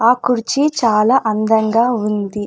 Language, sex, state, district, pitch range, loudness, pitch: Telugu, female, Andhra Pradesh, Anantapur, 215-245 Hz, -15 LUFS, 225 Hz